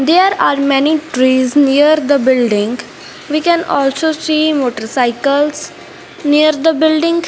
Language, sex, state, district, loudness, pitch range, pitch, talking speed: English, female, Punjab, Fazilka, -13 LUFS, 265-315 Hz, 295 Hz, 125 wpm